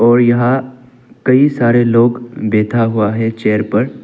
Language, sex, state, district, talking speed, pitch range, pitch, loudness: Hindi, male, Arunachal Pradesh, Longding, 150 wpm, 110-125 Hz, 120 Hz, -13 LUFS